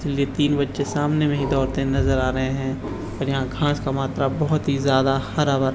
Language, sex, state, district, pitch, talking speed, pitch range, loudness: Hindi, male, Bihar, Purnia, 135 Hz, 220 wpm, 135-145 Hz, -22 LUFS